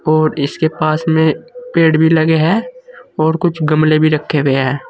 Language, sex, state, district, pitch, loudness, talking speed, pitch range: Hindi, male, Uttar Pradesh, Saharanpur, 160 Hz, -14 LUFS, 185 wpm, 155-165 Hz